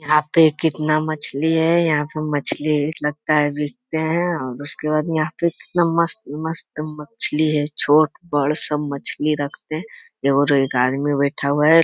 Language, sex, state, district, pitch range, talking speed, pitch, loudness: Hindi, male, Bihar, Jamui, 145-160 Hz, 165 wpm, 150 Hz, -19 LUFS